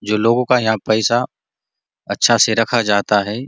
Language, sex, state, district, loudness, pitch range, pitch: Hindi, male, Chhattisgarh, Bastar, -16 LUFS, 105-120 Hz, 115 Hz